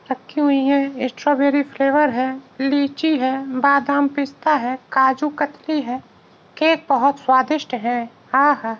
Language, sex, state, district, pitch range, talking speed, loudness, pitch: Hindi, male, Uttar Pradesh, Varanasi, 260-290 Hz, 135 wpm, -19 LUFS, 275 Hz